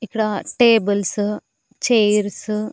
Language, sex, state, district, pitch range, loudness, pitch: Telugu, female, Andhra Pradesh, Annamaya, 205-225 Hz, -18 LUFS, 210 Hz